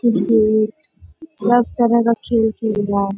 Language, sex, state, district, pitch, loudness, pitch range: Hindi, female, Bihar, Bhagalpur, 225 Hz, -17 LUFS, 215-235 Hz